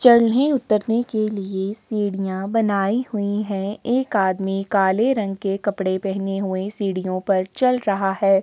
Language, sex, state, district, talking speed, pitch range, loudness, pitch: Hindi, female, Uttarakhand, Tehri Garhwal, 150 wpm, 195-225 Hz, -21 LUFS, 200 Hz